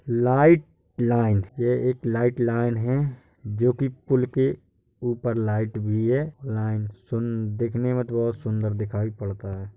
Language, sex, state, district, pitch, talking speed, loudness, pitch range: Hindi, male, Uttar Pradesh, Hamirpur, 115 Hz, 155 wpm, -24 LUFS, 110-125 Hz